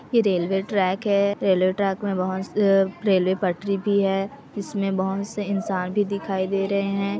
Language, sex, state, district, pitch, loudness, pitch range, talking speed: Hindi, female, Chhattisgarh, Kabirdham, 195 Hz, -23 LUFS, 190-200 Hz, 190 wpm